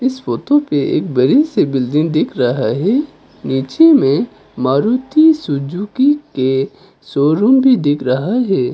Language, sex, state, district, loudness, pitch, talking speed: Hindi, male, Arunachal Pradesh, Papum Pare, -14 LUFS, 205 Hz, 135 wpm